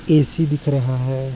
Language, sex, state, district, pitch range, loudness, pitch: Hindi, male, Maharashtra, Sindhudurg, 130-150 Hz, -19 LUFS, 140 Hz